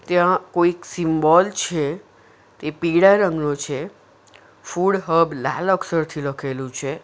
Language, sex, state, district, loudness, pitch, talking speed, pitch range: Gujarati, female, Gujarat, Valsad, -20 LUFS, 165 Hz, 120 wpm, 145-180 Hz